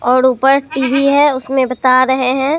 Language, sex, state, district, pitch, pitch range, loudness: Hindi, female, Bihar, Katihar, 265 Hz, 255-275 Hz, -13 LUFS